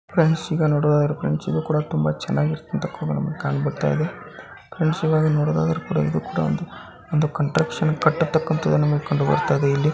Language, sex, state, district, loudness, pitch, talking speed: Kannada, male, Karnataka, Bijapur, -22 LUFS, 150 Hz, 175 wpm